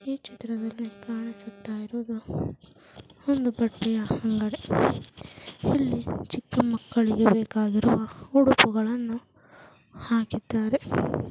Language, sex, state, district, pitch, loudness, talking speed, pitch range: Kannada, female, Karnataka, Mysore, 230 Hz, -26 LUFS, 70 wpm, 220-240 Hz